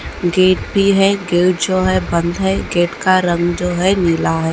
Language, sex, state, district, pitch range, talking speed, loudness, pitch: Hindi, female, Bihar, Jamui, 175-190 Hz, 185 wpm, -15 LUFS, 180 Hz